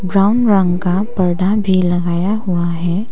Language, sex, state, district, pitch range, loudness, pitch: Hindi, female, Arunachal Pradesh, Papum Pare, 175-200 Hz, -15 LUFS, 185 Hz